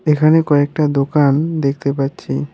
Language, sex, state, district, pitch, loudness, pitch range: Bengali, male, West Bengal, Alipurduar, 145 Hz, -16 LUFS, 140-150 Hz